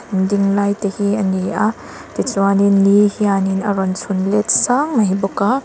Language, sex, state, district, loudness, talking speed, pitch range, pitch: Mizo, female, Mizoram, Aizawl, -16 LUFS, 225 wpm, 195-205 Hz, 200 Hz